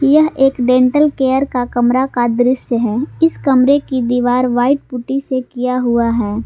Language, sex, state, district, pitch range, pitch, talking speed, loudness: Hindi, female, Jharkhand, Palamu, 245-270 Hz, 255 Hz, 175 wpm, -14 LUFS